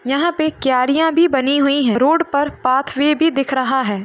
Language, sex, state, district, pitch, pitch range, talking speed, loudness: Hindi, female, Uttar Pradesh, Hamirpur, 280 Hz, 265-310 Hz, 220 wpm, -16 LUFS